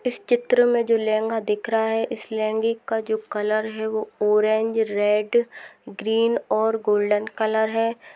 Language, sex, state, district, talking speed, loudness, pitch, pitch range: Hindi, female, Rajasthan, Churu, 160 wpm, -22 LUFS, 220 Hz, 215-230 Hz